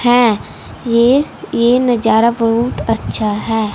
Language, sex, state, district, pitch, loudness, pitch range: Hindi, female, Punjab, Fazilka, 235 Hz, -14 LUFS, 220-245 Hz